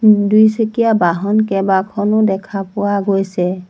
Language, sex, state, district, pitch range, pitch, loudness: Assamese, female, Assam, Sonitpur, 195-215 Hz, 205 Hz, -15 LUFS